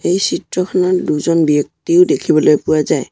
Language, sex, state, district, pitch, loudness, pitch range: Assamese, male, Assam, Sonitpur, 180 Hz, -14 LUFS, 165-190 Hz